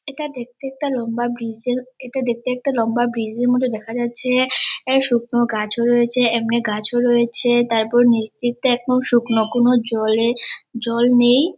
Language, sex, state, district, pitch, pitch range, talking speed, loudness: Bengali, male, West Bengal, Dakshin Dinajpur, 240 Hz, 230-250 Hz, 160 wpm, -18 LUFS